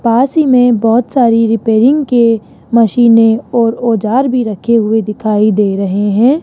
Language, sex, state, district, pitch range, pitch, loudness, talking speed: Hindi, male, Rajasthan, Jaipur, 220-245 Hz, 230 Hz, -11 LUFS, 160 wpm